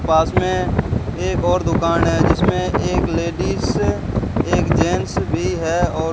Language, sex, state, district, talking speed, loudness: Hindi, male, Rajasthan, Bikaner, 145 wpm, -18 LUFS